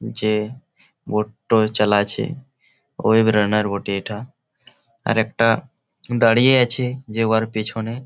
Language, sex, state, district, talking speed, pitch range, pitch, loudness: Bengali, male, West Bengal, Malda, 110 wpm, 110-125 Hz, 115 Hz, -19 LUFS